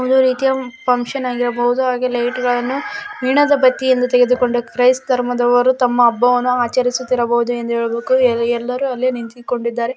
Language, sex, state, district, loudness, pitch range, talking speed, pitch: Kannada, female, Karnataka, Raichur, -16 LUFS, 240-255 Hz, 120 wpm, 250 Hz